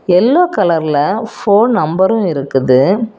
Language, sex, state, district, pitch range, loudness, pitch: Tamil, female, Tamil Nadu, Kanyakumari, 155-225 Hz, -12 LUFS, 190 Hz